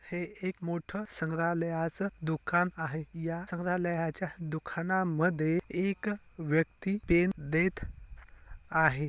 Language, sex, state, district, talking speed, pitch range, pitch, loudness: Marathi, male, Maharashtra, Pune, 100 wpm, 160-185 Hz, 170 Hz, -32 LUFS